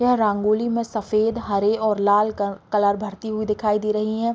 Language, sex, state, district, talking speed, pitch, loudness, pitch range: Hindi, female, Uttar Pradesh, Deoria, 195 wpm, 215 Hz, -21 LUFS, 205-220 Hz